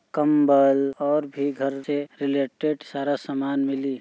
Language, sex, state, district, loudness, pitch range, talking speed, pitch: Bhojpuri, male, Uttar Pradesh, Gorakhpur, -23 LUFS, 135-145 Hz, 135 wpm, 140 Hz